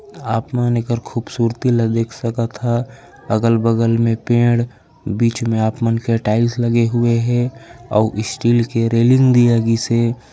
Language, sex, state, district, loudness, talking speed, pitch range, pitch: Chhattisgarhi, male, Chhattisgarh, Raigarh, -17 LUFS, 140 wpm, 115-120 Hz, 115 Hz